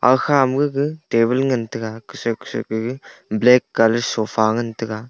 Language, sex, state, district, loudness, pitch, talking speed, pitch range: Wancho, male, Arunachal Pradesh, Longding, -19 LUFS, 115 Hz, 175 wpm, 110-130 Hz